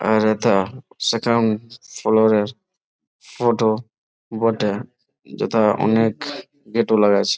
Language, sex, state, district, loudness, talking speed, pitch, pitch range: Bengali, male, West Bengal, Malda, -20 LUFS, 105 wpm, 110 Hz, 105-115 Hz